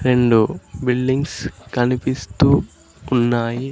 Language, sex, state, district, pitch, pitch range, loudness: Telugu, male, Andhra Pradesh, Sri Satya Sai, 125 Hz, 115-130 Hz, -19 LUFS